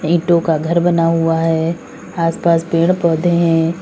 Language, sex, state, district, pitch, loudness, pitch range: Hindi, female, Uttar Pradesh, Saharanpur, 165 Hz, -15 LUFS, 165-170 Hz